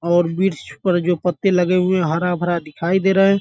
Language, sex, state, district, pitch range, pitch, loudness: Hindi, male, Bihar, Bhagalpur, 175-190 Hz, 180 Hz, -18 LUFS